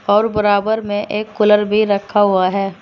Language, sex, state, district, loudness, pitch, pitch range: Hindi, female, Uttar Pradesh, Saharanpur, -16 LUFS, 205 Hz, 200-210 Hz